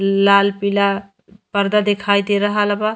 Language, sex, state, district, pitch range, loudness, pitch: Bhojpuri, female, Uttar Pradesh, Ghazipur, 200-205 Hz, -17 LUFS, 200 Hz